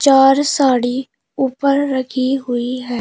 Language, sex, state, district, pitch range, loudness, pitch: Hindi, female, Uttar Pradesh, Shamli, 250-275 Hz, -16 LUFS, 265 Hz